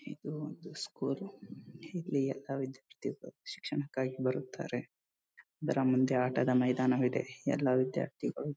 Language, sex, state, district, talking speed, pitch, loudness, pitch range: Kannada, male, Karnataka, Bellary, 105 wpm, 130 Hz, -34 LUFS, 125-145 Hz